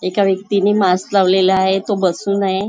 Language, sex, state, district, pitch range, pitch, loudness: Marathi, female, Maharashtra, Nagpur, 190-200 Hz, 195 Hz, -15 LUFS